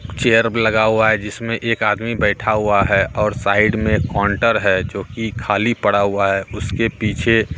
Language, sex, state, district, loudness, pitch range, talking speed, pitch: Hindi, male, Bihar, Katihar, -17 LUFS, 100-115 Hz, 180 wpm, 110 Hz